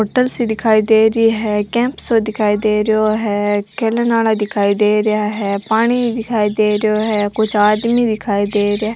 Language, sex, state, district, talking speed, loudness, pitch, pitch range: Rajasthani, female, Rajasthan, Churu, 185 wpm, -15 LUFS, 215 Hz, 210-225 Hz